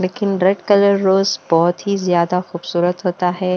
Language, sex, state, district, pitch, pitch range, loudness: Hindi, female, Bihar, West Champaran, 185 Hz, 175-195 Hz, -16 LUFS